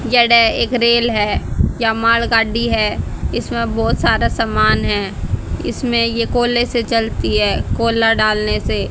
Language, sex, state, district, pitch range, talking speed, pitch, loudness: Hindi, female, Haryana, Charkhi Dadri, 220-235 Hz, 140 wpm, 230 Hz, -16 LUFS